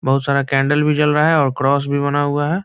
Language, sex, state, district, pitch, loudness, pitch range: Hindi, male, Bihar, Muzaffarpur, 145 Hz, -16 LUFS, 140-150 Hz